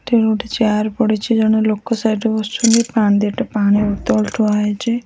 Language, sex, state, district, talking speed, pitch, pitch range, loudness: Odia, female, Odisha, Nuapada, 165 wpm, 220 Hz, 210-230 Hz, -16 LUFS